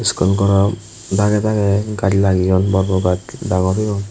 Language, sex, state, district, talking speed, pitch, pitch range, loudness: Chakma, female, Tripura, West Tripura, 160 wpm, 100 Hz, 95-105 Hz, -16 LUFS